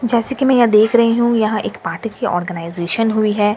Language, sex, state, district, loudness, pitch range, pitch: Hindi, female, Bihar, Katihar, -16 LUFS, 205-235 Hz, 220 Hz